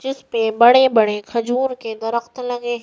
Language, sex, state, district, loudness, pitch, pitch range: Hindi, female, Madhya Pradesh, Bhopal, -18 LUFS, 235 Hz, 225-250 Hz